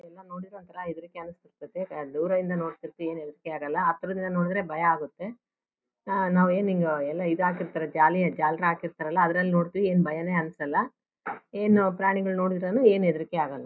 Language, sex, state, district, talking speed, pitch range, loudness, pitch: Kannada, female, Karnataka, Bellary, 135 wpm, 165-185 Hz, -26 LUFS, 175 Hz